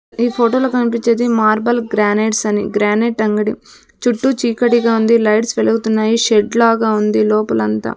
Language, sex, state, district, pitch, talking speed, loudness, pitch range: Telugu, female, Andhra Pradesh, Sri Satya Sai, 225 Hz, 135 wpm, -15 LUFS, 215-235 Hz